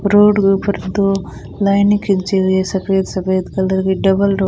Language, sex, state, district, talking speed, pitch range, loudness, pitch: Hindi, female, Rajasthan, Bikaner, 185 wpm, 190-200 Hz, -15 LUFS, 195 Hz